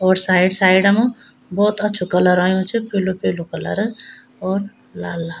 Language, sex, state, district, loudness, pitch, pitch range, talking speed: Garhwali, female, Uttarakhand, Tehri Garhwal, -17 LUFS, 190 Hz, 180-210 Hz, 175 wpm